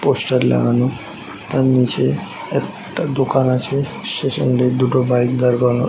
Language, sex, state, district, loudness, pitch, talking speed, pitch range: Bengali, male, West Bengal, Jhargram, -17 LUFS, 125 Hz, 155 wpm, 125-135 Hz